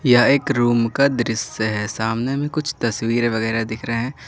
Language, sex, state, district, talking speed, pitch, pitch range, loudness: Hindi, male, Jharkhand, Garhwa, 195 wpm, 120 Hz, 115-130 Hz, -20 LUFS